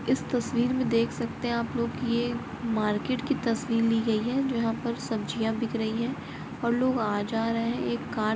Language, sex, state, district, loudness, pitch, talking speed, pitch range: Hindi, female, Bihar, Lakhisarai, -28 LUFS, 235 Hz, 225 wpm, 225-245 Hz